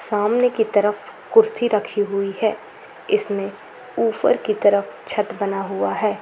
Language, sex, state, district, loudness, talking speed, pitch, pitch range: Hindi, female, Chhattisgarh, Balrampur, -20 LUFS, 155 wpm, 210 Hz, 200-225 Hz